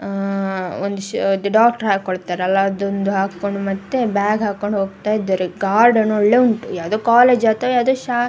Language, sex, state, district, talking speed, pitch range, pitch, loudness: Kannada, female, Karnataka, Dakshina Kannada, 145 wpm, 195-225 Hz, 200 Hz, -17 LUFS